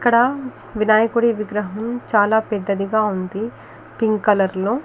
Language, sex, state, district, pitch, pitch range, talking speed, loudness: Telugu, female, Telangana, Karimnagar, 215 Hz, 205-235 Hz, 125 wpm, -19 LUFS